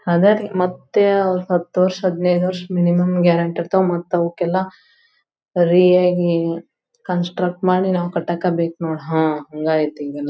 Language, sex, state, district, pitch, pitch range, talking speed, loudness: Kannada, female, Karnataka, Belgaum, 180 Hz, 170-185 Hz, 120 wpm, -18 LUFS